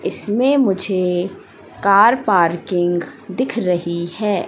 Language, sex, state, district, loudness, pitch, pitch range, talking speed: Hindi, female, Madhya Pradesh, Katni, -17 LUFS, 190 Hz, 175-225 Hz, 95 wpm